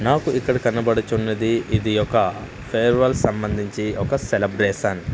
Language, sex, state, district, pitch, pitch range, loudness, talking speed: Telugu, male, Andhra Pradesh, Manyam, 115 Hz, 105-120 Hz, -21 LUFS, 115 wpm